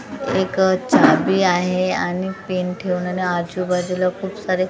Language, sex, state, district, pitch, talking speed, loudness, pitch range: Marathi, female, Maharashtra, Gondia, 185 Hz, 140 wpm, -19 LUFS, 180-190 Hz